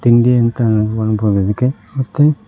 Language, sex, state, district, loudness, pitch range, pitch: Kannada, male, Karnataka, Koppal, -15 LUFS, 110-125 Hz, 115 Hz